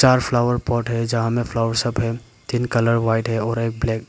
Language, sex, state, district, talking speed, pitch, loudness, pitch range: Hindi, male, Arunachal Pradesh, Papum Pare, 250 wpm, 115 Hz, -21 LUFS, 115-120 Hz